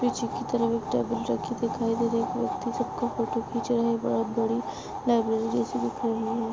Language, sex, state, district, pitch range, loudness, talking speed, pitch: Hindi, female, Goa, North and South Goa, 225-235 Hz, -28 LUFS, 210 wpm, 230 Hz